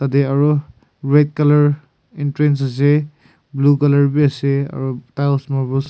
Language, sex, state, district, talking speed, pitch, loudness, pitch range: Nagamese, male, Nagaland, Kohima, 130 wpm, 140 Hz, -16 LUFS, 135-145 Hz